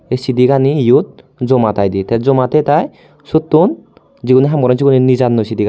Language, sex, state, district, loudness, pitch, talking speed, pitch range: Chakma, male, Tripura, Unakoti, -12 LUFS, 130 Hz, 180 wpm, 120-140 Hz